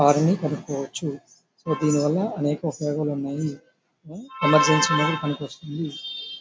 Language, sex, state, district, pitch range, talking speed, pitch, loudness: Telugu, male, Andhra Pradesh, Srikakulam, 145-160 Hz, 120 wpm, 150 Hz, -24 LUFS